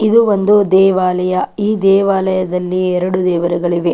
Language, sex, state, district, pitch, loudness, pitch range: Kannada, female, Karnataka, Chamarajanagar, 185 Hz, -14 LUFS, 180-200 Hz